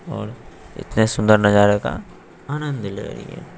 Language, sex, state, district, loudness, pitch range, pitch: Hindi, female, Bihar, West Champaran, -19 LUFS, 100-115 Hz, 105 Hz